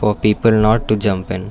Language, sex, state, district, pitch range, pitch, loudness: English, male, Karnataka, Bangalore, 100-110 Hz, 105 Hz, -16 LUFS